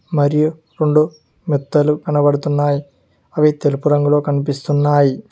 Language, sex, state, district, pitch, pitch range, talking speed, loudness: Telugu, male, Telangana, Mahabubabad, 145 Hz, 145-150 Hz, 90 wpm, -16 LUFS